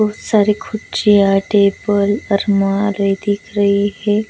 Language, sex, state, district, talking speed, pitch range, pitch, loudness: Hindi, female, Bihar, West Champaran, 125 wpm, 200-210 Hz, 205 Hz, -15 LUFS